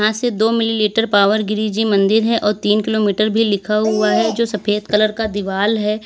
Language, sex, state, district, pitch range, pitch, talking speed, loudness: Hindi, female, Uttar Pradesh, Lalitpur, 210-220 Hz, 215 Hz, 210 wpm, -16 LUFS